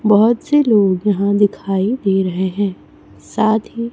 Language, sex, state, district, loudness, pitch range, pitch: Hindi, female, Chhattisgarh, Raipur, -16 LUFS, 195-220 Hz, 205 Hz